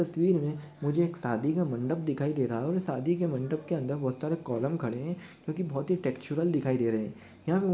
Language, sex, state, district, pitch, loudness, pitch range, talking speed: Hindi, male, Maharashtra, Nagpur, 155 Hz, -31 LUFS, 130-170 Hz, 225 wpm